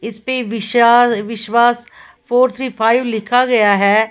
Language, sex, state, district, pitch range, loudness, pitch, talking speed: Hindi, female, Uttar Pradesh, Lalitpur, 220-245 Hz, -14 LUFS, 235 Hz, 130 wpm